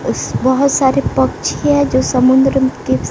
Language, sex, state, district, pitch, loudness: Hindi, female, Bihar, West Champaran, 260 Hz, -14 LUFS